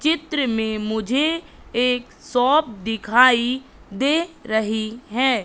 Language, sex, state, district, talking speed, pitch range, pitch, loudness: Hindi, female, Madhya Pradesh, Katni, 100 wpm, 220-280 Hz, 245 Hz, -21 LUFS